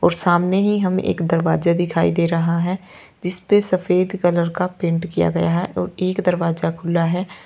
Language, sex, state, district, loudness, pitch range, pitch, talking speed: Hindi, female, Uttar Pradesh, Lalitpur, -19 LUFS, 165-185 Hz, 175 Hz, 185 wpm